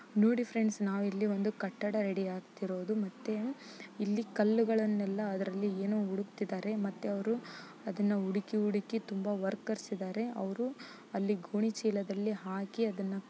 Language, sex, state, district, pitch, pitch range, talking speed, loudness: Kannada, female, Karnataka, Gulbarga, 205 Hz, 195-220 Hz, 115 wpm, -35 LUFS